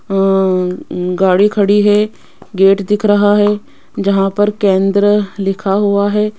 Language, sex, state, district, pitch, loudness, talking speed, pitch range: Hindi, female, Rajasthan, Jaipur, 200 Hz, -13 LUFS, 140 wpm, 195-205 Hz